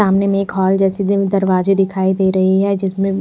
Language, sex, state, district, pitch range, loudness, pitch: Hindi, female, Odisha, Khordha, 190-195 Hz, -15 LUFS, 195 Hz